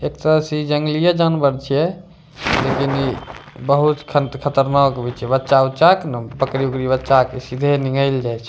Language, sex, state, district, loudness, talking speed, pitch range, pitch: Angika, male, Bihar, Bhagalpur, -17 LUFS, 170 wpm, 130-150 Hz, 135 Hz